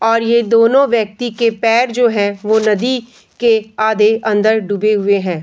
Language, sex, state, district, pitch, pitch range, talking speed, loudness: Hindi, female, Bihar, Bhagalpur, 220 Hz, 215-235 Hz, 175 wpm, -14 LUFS